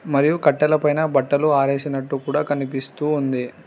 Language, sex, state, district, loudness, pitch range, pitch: Telugu, female, Telangana, Hyderabad, -20 LUFS, 135-150 Hz, 145 Hz